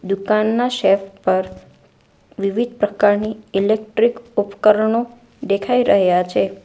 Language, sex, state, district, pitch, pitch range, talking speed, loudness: Gujarati, female, Gujarat, Valsad, 205 Hz, 195-230 Hz, 90 wpm, -18 LUFS